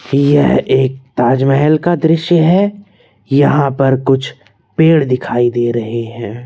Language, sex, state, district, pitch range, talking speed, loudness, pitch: Hindi, male, Madhya Pradesh, Bhopal, 120-155 Hz, 130 wpm, -13 LUFS, 135 Hz